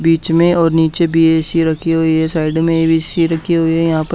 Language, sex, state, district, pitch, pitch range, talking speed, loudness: Hindi, male, Haryana, Charkhi Dadri, 165 Hz, 160-165 Hz, 260 wpm, -14 LUFS